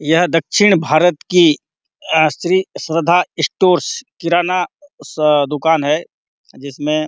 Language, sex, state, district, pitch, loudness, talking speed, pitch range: Hindi, male, Chhattisgarh, Bastar, 165 Hz, -15 LUFS, 110 wpm, 155-180 Hz